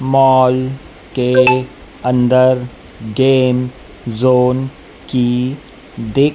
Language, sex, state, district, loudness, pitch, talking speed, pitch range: Hindi, female, Madhya Pradesh, Dhar, -14 LUFS, 125 Hz, 65 wpm, 125-130 Hz